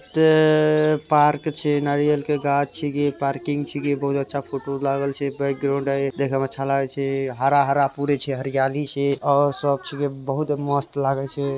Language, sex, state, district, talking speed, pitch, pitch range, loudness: Hindi, male, Bihar, Araria, 175 wpm, 140 Hz, 140-145 Hz, -22 LUFS